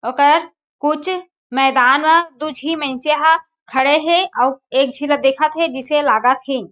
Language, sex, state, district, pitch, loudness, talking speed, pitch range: Chhattisgarhi, female, Chhattisgarh, Jashpur, 295 Hz, -16 LUFS, 170 wpm, 270-325 Hz